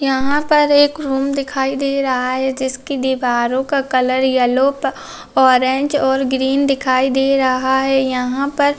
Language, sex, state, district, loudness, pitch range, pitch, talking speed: Hindi, female, Bihar, Saharsa, -16 LUFS, 260-275 Hz, 265 Hz, 155 wpm